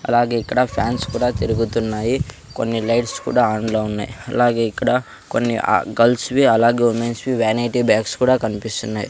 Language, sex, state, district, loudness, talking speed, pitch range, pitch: Telugu, male, Andhra Pradesh, Sri Satya Sai, -19 LUFS, 160 wpm, 110-120 Hz, 115 Hz